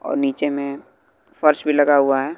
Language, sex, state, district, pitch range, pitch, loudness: Hindi, male, Bihar, West Champaran, 140-145 Hz, 140 Hz, -18 LUFS